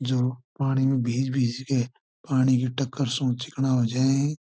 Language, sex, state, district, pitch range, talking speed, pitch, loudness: Marwari, male, Rajasthan, Churu, 125-135 Hz, 190 wpm, 130 Hz, -25 LUFS